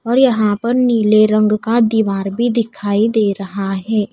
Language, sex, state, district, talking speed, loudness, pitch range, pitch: Hindi, female, Odisha, Nuapada, 175 wpm, -15 LUFS, 205-235 Hz, 215 Hz